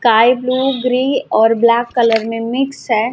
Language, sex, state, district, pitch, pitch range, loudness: Hindi, female, Chhattisgarh, Raipur, 240 Hz, 230-255 Hz, -14 LUFS